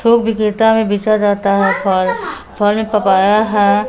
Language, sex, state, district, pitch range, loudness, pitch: Hindi, female, Bihar, West Champaran, 200-220 Hz, -14 LUFS, 210 Hz